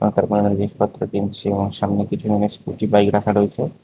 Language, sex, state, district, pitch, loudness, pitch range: Bengali, male, Tripura, West Tripura, 100 Hz, -20 LUFS, 100-105 Hz